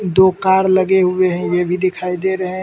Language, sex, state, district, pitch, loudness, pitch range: Hindi, male, Mizoram, Aizawl, 185 Hz, -15 LUFS, 180-190 Hz